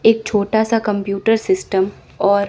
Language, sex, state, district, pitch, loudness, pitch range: Hindi, female, Chandigarh, Chandigarh, 210 Hz, -18 LUFS, 200-225 Hz